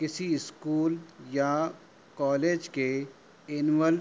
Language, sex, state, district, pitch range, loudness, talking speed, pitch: Hindi, male, Uttar Pradesh, Hamirpur, 140-165 Hz, -29 LUFS, 105 wpm, 155 Hz